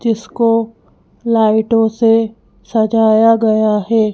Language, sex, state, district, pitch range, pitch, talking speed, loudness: Hindi, female, Madhya Pradesh, Bhopal, 220-230 Hz, 225 Hz, 85 wpm, -13 LUFS